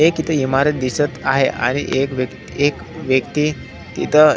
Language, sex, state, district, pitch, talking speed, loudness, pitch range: Marathi, male, Maharashtra, Solapur, 140 Hz, 150 wpm, -18 LUFS, 130-150 Hz